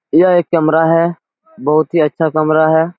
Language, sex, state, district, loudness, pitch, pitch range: Hindi, male, Bihar, Jahanabad, -13 LUFS, 160 Hz, 155-170 Hz